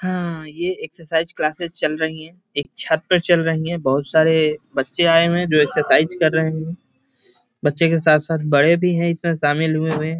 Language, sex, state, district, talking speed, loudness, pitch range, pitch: Hindi, male, Bihar, East Champaran, 200 wpm, -18 LUFS, 155-170 Hz, 160 Hz